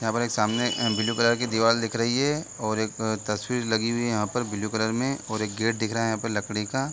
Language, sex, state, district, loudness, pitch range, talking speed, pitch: Hindi, male, Chhattisgarh, Bilaspur, -26 LUFS, 110-120 Hz, 270 wpm, 115 Hz